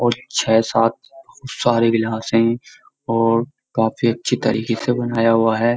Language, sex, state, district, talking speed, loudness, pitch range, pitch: Hindi, male, Uttar Pradesh, Jyotiba Phule Nagar, 155 wpm, -18 LUFS, 115-120 Hz, 115 Hz